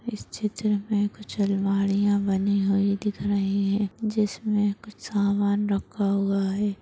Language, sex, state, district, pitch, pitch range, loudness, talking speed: Hindi, female, Chhattisgarh, Bastar, 200 Hz, 195-210 Hz, -25 LUFS, 140 wpm